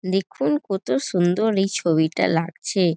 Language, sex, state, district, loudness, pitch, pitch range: Bengali, female, West Bengal, North 24 Parganas, -22 LUFS, 180 Hz, 165-195 Hz